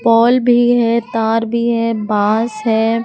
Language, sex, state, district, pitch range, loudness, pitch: Hindi, female, Jharkhand, Palamu, 225-235 Hz, -14 LUFS, 230 Hz